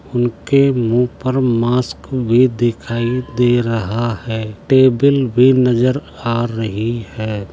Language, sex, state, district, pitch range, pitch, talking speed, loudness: Hindi, male, Uttar Pradesh, Jalaun, 115-130 Hz, 120 Hz, 120 wpm, -16 LUFS